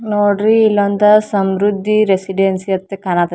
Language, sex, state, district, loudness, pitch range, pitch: Kannada, female, Karnataka, Dharwad, -14 LUFS, 190-210 Hz, 200 Hz